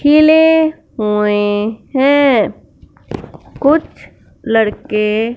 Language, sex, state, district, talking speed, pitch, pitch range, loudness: Hindi, female, Punjab, Fazilka, 55 wpm, 235 Hz, 210-300 Hz, -13 LUFS